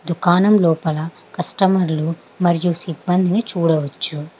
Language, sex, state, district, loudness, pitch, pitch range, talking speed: Telugu, female, Telangana, Hyderabad, -18 LUFS, 170 Hz, 160-180 Hz, 80 wpm